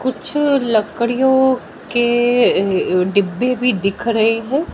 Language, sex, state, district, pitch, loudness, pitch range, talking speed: Hindi, female, Haryana, Jhajjar, 240 Hz, -16 LUFS, 215-260 Hz, 100 wpm